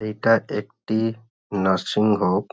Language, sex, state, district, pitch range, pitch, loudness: Bengali, male, West Bengal, Kolkata, 100-115 Hz, 110 Hz, -22 LUFS